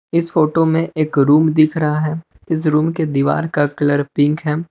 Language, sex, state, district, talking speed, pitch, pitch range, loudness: Hindi, male, Jharkhand, Palamu, 205 wpm, 155 Hz, 150-160 Hz, -16 LUFS